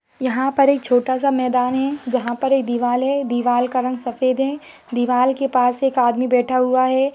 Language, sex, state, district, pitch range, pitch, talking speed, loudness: Hindi, female, Bihar, Purnia, 245-270 Hz, 255 Hz, 200 wpm, -19 LUFS